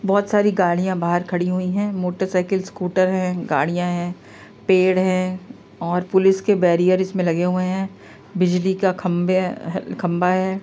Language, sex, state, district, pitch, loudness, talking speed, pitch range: Hindi, female, Uttar Pradesh, Varanasi, 185 Hz, -20 LUFS, 165 wpm, 180-190 Hz